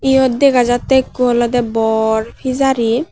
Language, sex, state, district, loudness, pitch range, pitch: Chakma, female, Tripura, Unakoti, -14 LUFS, 230-265 Hz, 245 Hz